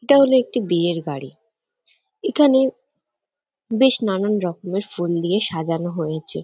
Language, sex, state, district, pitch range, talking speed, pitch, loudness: Bengali, female, West Bengal, North 24 Parganas, 170-265 Hz, 120 wpm, 200 Hz, -20 LUFS